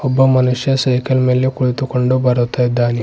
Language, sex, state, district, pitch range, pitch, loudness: Kannada, male, Karnataka, Bidar, 125-130 Hz, 125 Hz, -15 LUFS